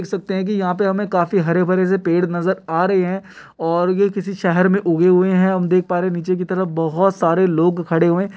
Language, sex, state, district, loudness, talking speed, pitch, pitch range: Hindi, male, Bihar, Kishanganj, -17 LUFS, 260 wpm, 185 Hz, 175-190 Hz